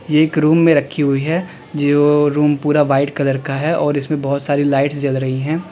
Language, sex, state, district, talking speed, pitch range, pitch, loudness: Hindi, male, Uttar Pradesh, Lalitpur, 230 wpm, 140-155 Hz, 145 Hz, -16 LUFS